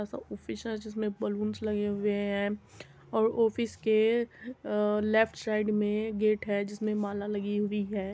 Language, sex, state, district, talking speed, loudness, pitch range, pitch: Hindi, female, Uttar Pradesh, Muzaffarnagar, 160 wpm, -30 LUFS, 205-220 Hz, 210 Hz